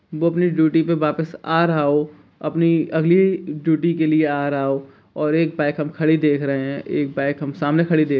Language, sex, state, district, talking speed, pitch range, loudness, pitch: Hindi, male, Bihar, Begusarai, 225 wpm, 145-165 Hz, -19 LUFS, 155 Hz